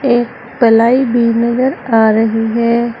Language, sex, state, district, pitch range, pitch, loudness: Hindi, female, Uttar Pradesh, Saharanpur, 230-245 Hz, 235 Hz, -12 LUFS